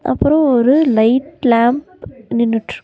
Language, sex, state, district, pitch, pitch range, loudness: Tamil, female, Tamil Nadu, Nilgiris, 250 Hz, 235-295 Hz, -14 LUFS